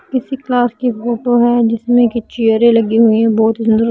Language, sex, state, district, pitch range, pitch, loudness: Hindi, female, Bihar, Patna, 225-245 Hz, 235 Hz, -13 LUFS